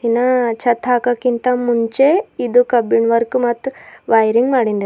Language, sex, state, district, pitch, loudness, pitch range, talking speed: Kannada, female, Karnataka, Bidar, 245 Hz, -15 LUFS, 230-250 Hz, 125 wpm